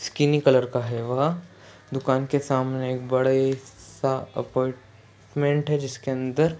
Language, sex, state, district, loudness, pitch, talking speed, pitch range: Hindi, male, Chhattisgarh, Bastar, -24 LUFS, 130 Hz, 145 wpm, 125-140 Hz